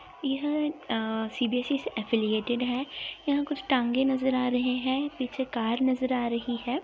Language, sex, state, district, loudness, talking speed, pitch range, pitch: Hindi, female, Bihar, Darbhanga, -28 LUFS, 165 wpm, 240-275 Hz, 255 Hz